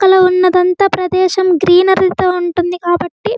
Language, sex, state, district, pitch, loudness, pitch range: Telugu, female, Andhra Pradesh, Guntur, 365 Hz, -12 LUFS, 360-380 Hz